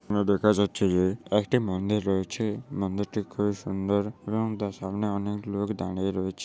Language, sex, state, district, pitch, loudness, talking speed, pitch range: Bengali, male, West Bengal, Dakshin Dinajpur, 100 Hz, -28 LUFS, 160 wpm, 95-105 Hz